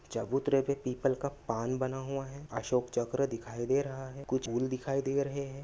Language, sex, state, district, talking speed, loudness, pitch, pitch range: Hindi, male, Maharashtra, Nagpur, 210 wpm, -33 LUFS, 135 Hz, 125-140 Hz